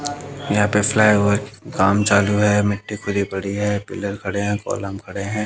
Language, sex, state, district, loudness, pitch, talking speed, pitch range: Hindi, male, Haryana, Jhajjar, -19 LUFS, 105 Hz, 185 wpm, 100-105 Hz